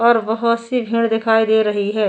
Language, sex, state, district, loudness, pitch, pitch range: Hindi, female, Goa, North and South Goa, -17 LUFS, 225 Hz, 220-230 Hz